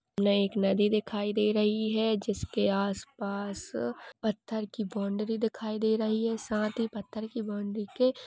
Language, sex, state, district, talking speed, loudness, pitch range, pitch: Hindi, female, Jharkhand, Sahebganj, 165 wpm, -30 LUFS, 205-220 Hz, 215 Hz